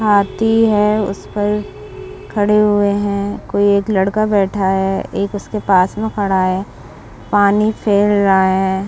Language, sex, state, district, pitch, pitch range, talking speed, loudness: Hindi, female, Bihar, Saran, 205 Hz, 195-210 Hz, 150 wpm, -15 LUFS